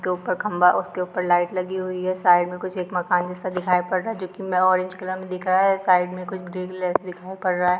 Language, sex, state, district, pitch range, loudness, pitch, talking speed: Hindi, female, Chhattisgarh, Sukma, 180-185 Hz, -23 LUFS, 185 Hz, 230 wpm